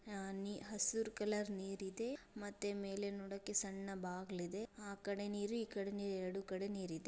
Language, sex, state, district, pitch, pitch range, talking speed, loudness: Kannada, female, Karnataka, Dharwad, 200 Hz, 195-210 Hz, 160 wpm, -44 LUFS